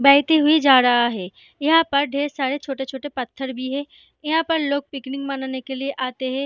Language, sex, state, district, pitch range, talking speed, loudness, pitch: Hindi, female, Jharkhand, Sahebganj, 265-290 Hz, 205 wpm, -21 LUFS, 275 Hz